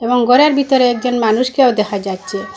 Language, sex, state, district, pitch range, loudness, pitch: Bengali, female, Assam, Hailakandi, 200-255 Hz, -14 LUFS, 245 Hz